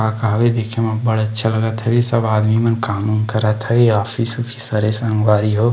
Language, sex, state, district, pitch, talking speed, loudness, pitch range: Chhattisgarhi, male, Chhattisgarh, Bastar, 110 Hz, 210 wpm, -17 LUFS, 110-115 Hz